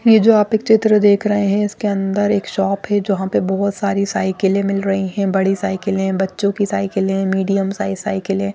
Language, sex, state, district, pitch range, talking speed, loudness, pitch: Hindi, female, Chandigarh, Chandigarh, 195-205 Hz, 220 wpm, -17 LUFS, 200 Hz